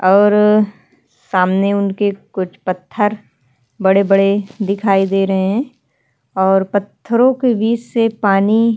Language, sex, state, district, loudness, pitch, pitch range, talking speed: Hindi, female, Uttarakhand, Tehri Garhwal, -15 LUFS, 200 Hz, 195-215 Hz, 115 wpm